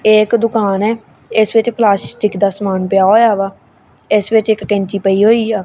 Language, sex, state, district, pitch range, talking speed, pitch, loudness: Punjabi, female, Punjab, Kapurthala, 195-220 Hz, 190 wpm, 210 Hz, -13 LUFS